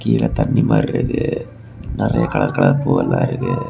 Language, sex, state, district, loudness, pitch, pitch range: Tamil, male, Tamil Nadu, Kanyakumari, -18 LUFS, 140 Hz, 120-145 Hz